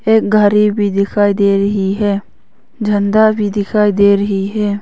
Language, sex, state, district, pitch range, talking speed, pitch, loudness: Hindi, female, Arunachal Pradesh, Longding, 200-210 Hz, 160 wpm, 205 Hz, -13 LUFS